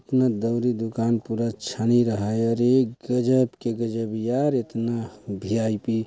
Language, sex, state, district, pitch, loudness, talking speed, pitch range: Hindi, male, Chhattisgarh, Balrampur, 115 Hz, -24 LUFS, 170 wpm, 115-120 Hz